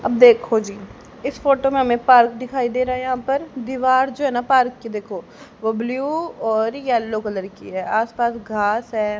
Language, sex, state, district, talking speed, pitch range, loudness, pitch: Hindi, female, Haryana, Rohtak, 210 wpm, 220-265 Hz, -19 LUFS, 245 Hz